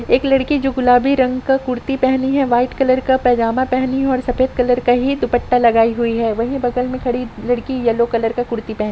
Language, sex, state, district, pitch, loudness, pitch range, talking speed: Hindi, female, Jharkhand, Sahebganj, 250 Hz, -16 LUFS, 240-260 Hz, 235 wpm